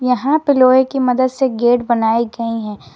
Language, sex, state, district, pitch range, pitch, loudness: Hindi, female, Jharkhand, Garhwa, 235-260 Hz, 250 Hz, -15 LUFS